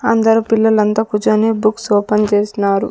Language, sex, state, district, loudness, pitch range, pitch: Telugu, female, Andhra Pradesh, Sri Satya Sai, -14 LUFS, 210-225 Hz, 215 Hz